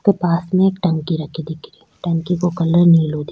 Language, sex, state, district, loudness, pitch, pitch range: Rajasthani, female, Rajasthan, Churu, -17 LUFS, 170 Hz, 160-180 Hz